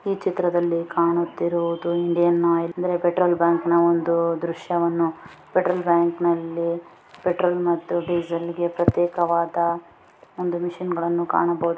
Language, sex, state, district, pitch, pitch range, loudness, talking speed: Kannada, female, Karnataka, Mysore, 170 Hz, 170-175 Hz, -22 LUFS, 115 wpm